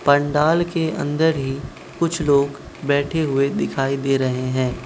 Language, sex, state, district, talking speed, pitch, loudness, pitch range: Hindi, male, Manipur, Imphal West, 150 wpm, 140 Hz, -20 LUFS, 135-160 Hz